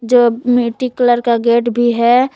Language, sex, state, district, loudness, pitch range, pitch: Hindi, female, Jharkhand, Palamu, -13 LUFS, 235-245 Hz, 240 Hz